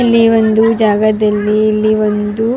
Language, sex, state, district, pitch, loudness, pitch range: Kannada, female, Karnataka, Raichur, 215 Hz, -12 LUFS, 210-225 Hz